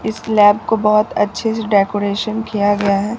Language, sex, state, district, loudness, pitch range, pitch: Hindi, female, Bihar, Katihar, -16 LUFS, 200-220 Hz, 210 Hz